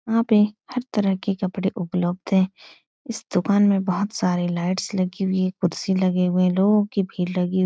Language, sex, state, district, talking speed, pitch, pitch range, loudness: Hindi, female, Uttar Pradesh, Etah, 195 wpm, 190 Hz, 180-205 Hz, -22 LUFS